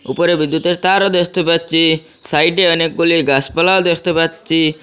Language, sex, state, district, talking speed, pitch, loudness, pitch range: Bengali, male, Assam, Hailakandi, 135 wpm, 165 Hz, -14 LUFS, 160-175 Hz